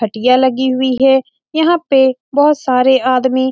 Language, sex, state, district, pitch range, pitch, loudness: Hindi, female, Bihar, Saran, 255-275 Hz, 260 Hz, -13 LUFS